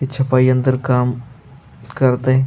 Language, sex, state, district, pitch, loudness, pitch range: Marathi, male, Maharashtra, Aurangabad, 130 Hz, -16 LUFS, 125-135 Hz